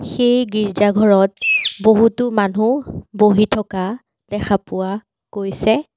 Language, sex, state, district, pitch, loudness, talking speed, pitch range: Assamese, female, Assam, Sonitpur, 210 Hz, -16 LUFS, 100 wpm, 200-230 Hz